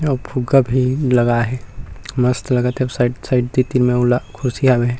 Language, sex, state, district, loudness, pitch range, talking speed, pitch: Chhattisgarhi, male, Chhattisgarh, Rajnandgaon, -17 LUFS, 120-130 Hz, 215 wpm, 125 Hz